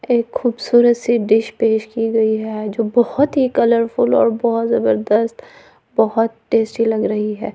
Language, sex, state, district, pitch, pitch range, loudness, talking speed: Hindi, female, Delhi, New Delhi, 230 Hz, 220-240 Hz, -17 LUFS, 160 wpm